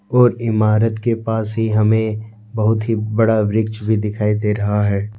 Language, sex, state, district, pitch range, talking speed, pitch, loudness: Hindi, male, Jharkhand, Deoghar, 105-110 Hz, 175 wpm, 110 Hz, -17 LUFS